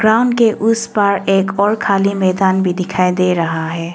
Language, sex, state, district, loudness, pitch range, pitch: Hindi, female, Arunachal Pradesh, Longding, -15 LUFS, 180-215 Hz, 195 Hz